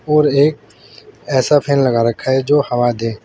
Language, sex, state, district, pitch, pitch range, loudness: Hindi, male, Uttar Pradesh, Saharanpur, 130 Hz, 120-145 Hz, -15 LUFS